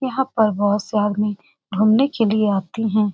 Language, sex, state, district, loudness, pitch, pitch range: Hindi, female, Bihar, Saran, -19 LUFS, 215 Hz, 205-225 Hz